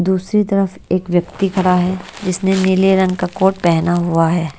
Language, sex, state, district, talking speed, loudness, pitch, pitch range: Hindi, female, Odisha, Nuapada, 185 wpm, -16 LUFS, 185 Hz, 175-190 Hz